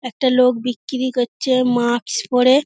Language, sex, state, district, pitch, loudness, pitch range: Bengali, female, West Bengal, Dakshin Dinajpur, 250 Hz, -18 LUFS, 245-255 Hz